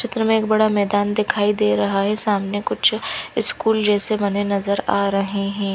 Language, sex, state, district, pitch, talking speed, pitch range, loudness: Hindi, female, Punjab, Fazilka, 205 Hz, 185 wpm, 200-215 Hz, -19 LUFS